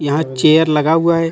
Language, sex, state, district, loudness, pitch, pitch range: Hindi, male, Jharkhand, Deoghar, -14 LUFS, 160 Hz, 150-165 Hz